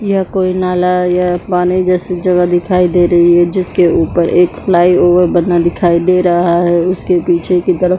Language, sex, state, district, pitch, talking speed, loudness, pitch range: Hindi, female, Chhattisgarh, Bilaspur, 180 Hz, 180 wpm, -12 LUFS, 175-180 Hz